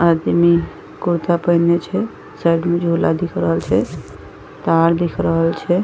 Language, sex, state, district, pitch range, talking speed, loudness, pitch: Maithili, female, Bihar, Madhepura, 165-170 Hz, 145 wpm, -17 LUFS, 170 Hz